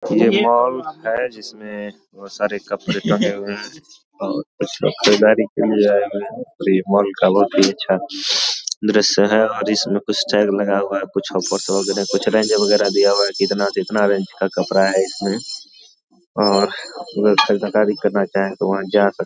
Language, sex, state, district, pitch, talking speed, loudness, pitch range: Hindi, male, Bihar, Samastipur, 100 Hz, 200 wpm, -18 LUFS, 100-105 Hz